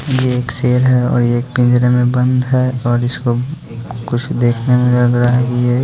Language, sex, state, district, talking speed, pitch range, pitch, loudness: Hindi, male, Bihar, West Champaran, 215 wpm, 120-125 Hz, 125 Hz, -14 LUFS